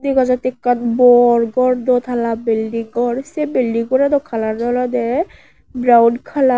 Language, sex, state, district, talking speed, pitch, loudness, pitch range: Chakma, female, Tripura, West Tripura, 145 wpm, 245 Hz, -16 LUFS, 235-255 Hz